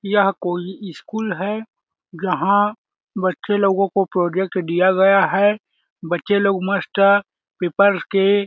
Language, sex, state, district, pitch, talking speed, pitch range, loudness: Hindi, male, Chhattisgarh, Balrampur, 195 Hz, 125 wpm, 185-200 Hz, -19 LUFS